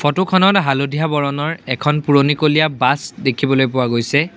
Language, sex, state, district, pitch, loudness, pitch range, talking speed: Assamese, male, Assam, Sonitpur, 145 Hz, -16 LUFS, 135-155 Hz, 125 wpm